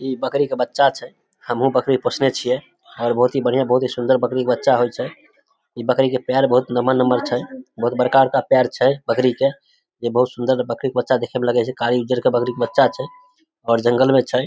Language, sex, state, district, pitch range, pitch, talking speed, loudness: Maithili, male, Bihar, Samastipur, 125-135 Hz, 125 Hz, 230 wpm, -19 LUFS